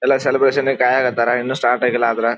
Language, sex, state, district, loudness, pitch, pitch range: Kannada, male, Karnataka, Dharwad, -16 LUFS, 125 Hz, 120-130 Hz